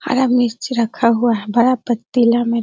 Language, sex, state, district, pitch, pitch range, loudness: Hindi, female, Bihar, Araria, 235 Hz, 230-250 Hz, -16 LUFS